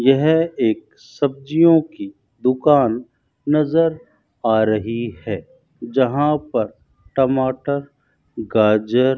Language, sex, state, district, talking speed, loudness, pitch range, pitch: Hindi, male, Rajasthan, Bikaner, 90 wpm, -19 LUFS, 110-145 Hz, 130 Hz